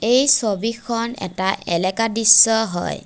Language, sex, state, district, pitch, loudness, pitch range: Assamese, female, Assam, Kamrup Metropolitan, 225 Hz, -17 LUFS, 190-230 Hz